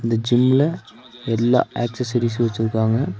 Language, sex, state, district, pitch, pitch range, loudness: Tamil, male, Tamil Nadu, Nilgiris, 120 Hz, 115-125 Hz, -20 LUFS